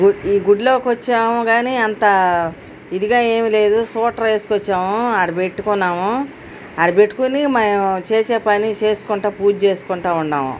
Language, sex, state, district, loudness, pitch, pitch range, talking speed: Telugu, male, Andhra Pradesh, Guntur, -17 LUFS, 210 Hz, 190-230 Hz, 125 wpm